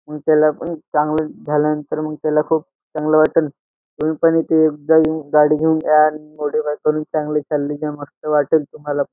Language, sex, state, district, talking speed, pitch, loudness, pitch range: Marathi, male, Maharashtra, Nagpur, 170 wpm, 155 Hz, -18 LUFS, 150-155 Hz